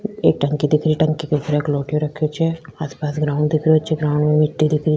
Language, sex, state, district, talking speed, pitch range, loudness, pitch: Rajasthani, female, Rajasthan, Churu, 265 wpm, 150-155 Hz, -19 LUFS, 150 Hz